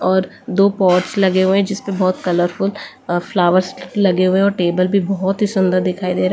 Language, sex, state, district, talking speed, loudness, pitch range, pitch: Hindi, female, Delhi, New Delhi, 225 wpm, -16 LUFS, 180-195 Hz, 185 Hz